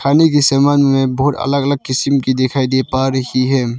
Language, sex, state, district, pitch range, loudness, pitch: Hindi, male, Arunachal Pradesh, Lower Dibang Valley, 130-140 Hz, -14 LUFS, 135 Hz